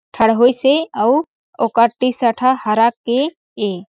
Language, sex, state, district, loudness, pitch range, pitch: Chhattisgarhi, female, Chhattisgarh, Sarguja, -16 LUFS, 225-265 Hz, 240 Hz